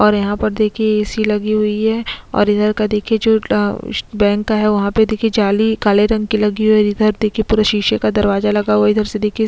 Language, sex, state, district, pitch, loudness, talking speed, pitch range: Hindi, female, Uttarakhand, Tehri Garhwal, 215 Hz, -15 LUFS, 255 wpm, 210-215 Hz